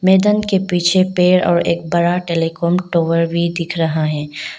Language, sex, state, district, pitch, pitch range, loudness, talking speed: Hindi, female, Arunachal Pradesh, Lower Dibang Valley, 170 Hz, 165-180 Hz, -16 LUFS, 170 wpm